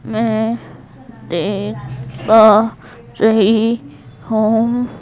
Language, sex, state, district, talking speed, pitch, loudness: Hindi, female, Madhya Pradesh, Bhopal, 60 wpm, 220 Hz, -15 LUFS